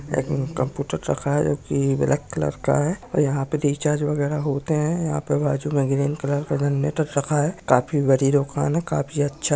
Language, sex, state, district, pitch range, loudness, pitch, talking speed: Angika, male, Bihar, Supaul, 140-150 Hz, -22 LUFS, 145 Hz, 220 wpm